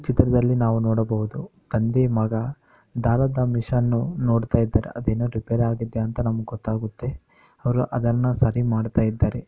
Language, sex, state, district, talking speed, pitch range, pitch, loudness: Kannada, male, Karnataka, Bellary, 115 wpm, 110-125 Hz, 115 Hz, -23 LUFS